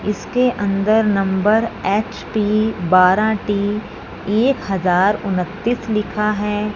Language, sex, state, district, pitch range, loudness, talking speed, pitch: Hindi, female, Punjab, Fazilka, 195-215 Hz, -18 LUFS, 100 wpm, 210 Hz